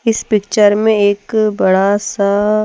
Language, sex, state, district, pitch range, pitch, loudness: Hindi, female, Bihar, Patna, 200-215 Hz, 210 Hz, -13 LUFS